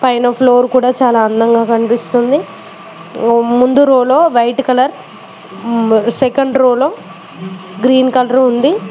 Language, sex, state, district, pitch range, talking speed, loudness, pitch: Telugu, female, Telangana, Mahabubabad, 230-260 Hz, 100 wpm, -11 LUFS, 245 Hz